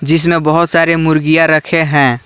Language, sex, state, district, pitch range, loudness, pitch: Hindi, male, Jharkhand, Garhwa, 155-165 Hz, -11 LUFS, 160 Hz